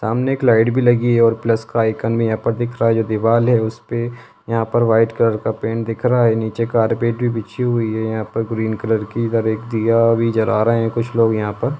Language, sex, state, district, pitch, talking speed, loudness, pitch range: Hindi, male, Bihar, Vaishali, 115 Hz, 265 wpm, -18 LUFS, 110-115 Hz